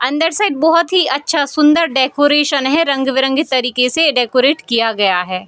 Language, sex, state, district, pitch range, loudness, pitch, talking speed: Hindi, female, Bihar, Gopalganj, 250-315 Hz, -13 LUFS, 280 Hz, 165 wpm